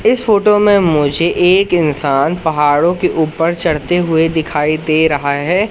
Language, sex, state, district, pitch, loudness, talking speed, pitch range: Hindi, male, Madhya Pradesh, Katni, 165 Hz, -13 LUFS, 160 wpm, 150-180 Hz